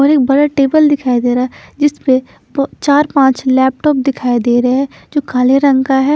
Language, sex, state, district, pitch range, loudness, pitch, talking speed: Hindi, female, Chandigarh, Chandigarh, 260-290 Hz, -13 LUFS, 275 Hz, 225 wpm